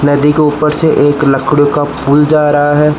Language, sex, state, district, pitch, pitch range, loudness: Hindi, male, Arunachal Pradesh, Lower Dibang Valley, 145 Hz, 145-150 Hz, -10 LUFS